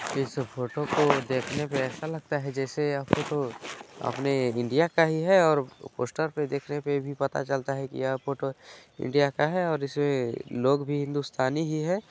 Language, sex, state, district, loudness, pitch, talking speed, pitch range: Hindi, male, Chhattisgarh, Bilaspur, -28 LUFS, 140 Hz, 190 wpm, 135-150 Hz